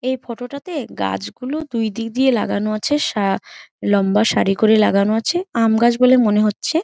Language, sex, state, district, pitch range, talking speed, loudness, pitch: Bengali, female, West Bengal, Jhargram, 210-260 Hz, 195 wpm, -18 LUFS, 225 Hz